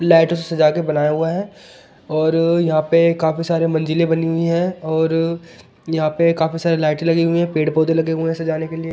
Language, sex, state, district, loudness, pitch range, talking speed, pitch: Hindi, male, Delhi, New Delhi, -18 LUFS, 160-165 Hz, 215 wpm, 165 Hz